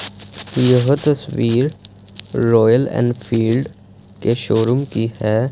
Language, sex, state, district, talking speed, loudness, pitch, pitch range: Hindi, male, Punjab, Fazilka, 85 wpm, -17 LUFS, 115 Hz, 105-125 Hz